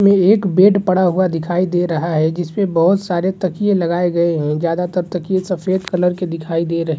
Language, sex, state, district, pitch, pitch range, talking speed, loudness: Hindi, male, Uttar Pradesh, Varanasi, 180 Hz, 170-185 Hz, 215 wpm, -16 LUFS